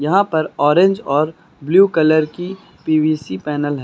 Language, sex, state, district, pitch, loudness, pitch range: Hindi, male, Uttar Pradesh, Lucknow, 155 Hz, -16 LUFS, 150-175 Hz